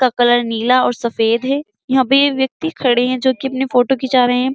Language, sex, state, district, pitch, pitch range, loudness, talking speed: Hindi, female, Uttar Pradesh, Jyotiba Phule Nagar, 255 Hz, 245-265 Hz, -15 LUFS, 235 wpm